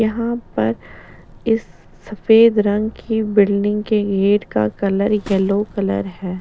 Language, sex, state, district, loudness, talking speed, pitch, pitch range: Hindi, female, Bihar, Patna, -18 LUFS, 140 wpm, 205 Hz, 195-220 Hz